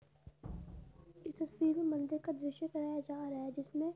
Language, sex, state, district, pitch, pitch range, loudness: Hindi, female, Uttar Pradesh, Budaun, 305 Hz, 290-320 Hz, -39 LUFS